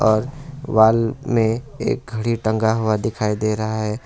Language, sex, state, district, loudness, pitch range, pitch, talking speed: Hindi, male, West Bengal, Alipurduar, -20 LUFS, 110-120 Hz, 110 Hz, 160 wpm